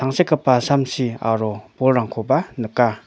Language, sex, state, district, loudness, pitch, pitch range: Garo, male, Meghalaya, North Garo Hills, -20 LUFS, 125 Hz, 115-135 Hz